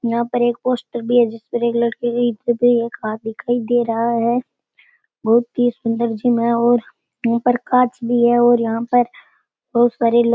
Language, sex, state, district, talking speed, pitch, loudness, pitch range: Rajasthani, male, Rajasthan, Churu, 185 wpm, 240 Hz, -18 LUFS, 235-240 Hz